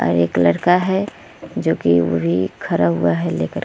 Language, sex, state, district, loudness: Hindi, female, Bihar, Vaishali, -18 LUFS